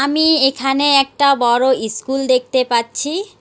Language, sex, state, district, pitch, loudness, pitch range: Bengali, female, West Bengal, Alipurduar, 270 Hz, -15 LUFS, 250-285 Hz